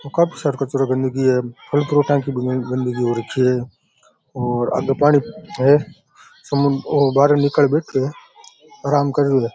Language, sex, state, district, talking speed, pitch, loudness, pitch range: Rajasthani, male, Rajasthan, Churu, 170 wpm, 140 Hz, -18 LUFS, 130-145 Hz